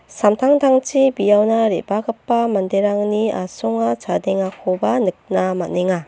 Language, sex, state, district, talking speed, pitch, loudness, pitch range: Garo, female, Meghalaya, North Garo Hills, 80 wpm, 205 Hz, -18 LUFS, 185-230 Hz